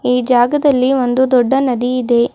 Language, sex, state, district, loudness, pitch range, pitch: Kannada, female, Karnataka, Bidar, -13 LUFS, 245-260 Hz, 255 Hz